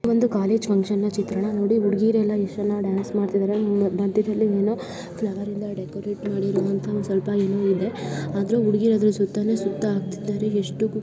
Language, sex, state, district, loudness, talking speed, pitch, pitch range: Kannada, female, Karnataka, Belgaum, -23 LUFS, 150 wpm, 205 Hz, 195-210 Hz